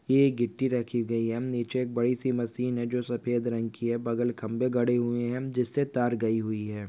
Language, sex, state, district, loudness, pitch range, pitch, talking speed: Hindi, male, Maharashtra, Pune, -29 LUFS, 115-125 Hz, 120 Hz, 235 wpm